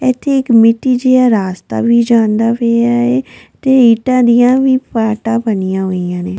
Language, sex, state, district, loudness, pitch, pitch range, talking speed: Punjabi, female, Delhi, New Delhi, -12 LUFS, 235 Hz, 215-255 Hz, 160 wpm